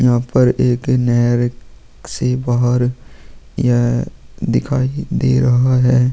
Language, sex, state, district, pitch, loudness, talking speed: Hindi, male, Chhattisgarh, Sukma, 125 Hz, -16 LUFS, 110 wpm